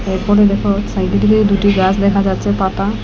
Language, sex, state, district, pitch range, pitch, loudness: Bengali, female, Assam, Hailakandi, 190-205 Hz, 200 Hz, -14 LUFS